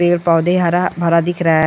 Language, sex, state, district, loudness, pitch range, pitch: Hindi, female, Uttarakhand, Uttarkashi, -15 LUFS, 170-175 Hz, 170 Hz